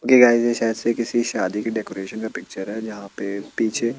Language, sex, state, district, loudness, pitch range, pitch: Hindi, male, Chandigarh, Chandigarh, -22 LUFS, 105-120 Hz, 110 Hz